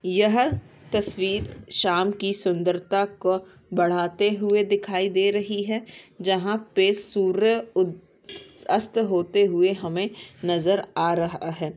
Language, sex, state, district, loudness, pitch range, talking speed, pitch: Hindi, female, Uttarakhand, Tehri Garhwal, -24 LUFS, 180-205 Hz, 120 wpm, 195 Hz